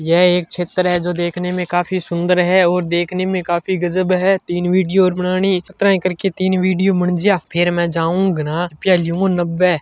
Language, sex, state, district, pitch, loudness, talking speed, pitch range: Hindi, male, Rajasthan, Churu, 180 Hz, -17 LUFS, 120 wpm, 175-185 Hz